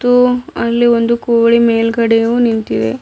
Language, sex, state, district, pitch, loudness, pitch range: Kannada, female, Karnataka, Bidar, 235 Hz, -13 LUFS, 225-240 Hz